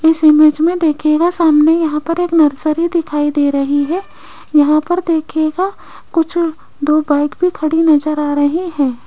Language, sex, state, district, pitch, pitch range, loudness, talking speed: Hindi, female, Rajasthan, Jaipur, 310 Hz, 300-335 Hz, -14 LUFS, 165 wpm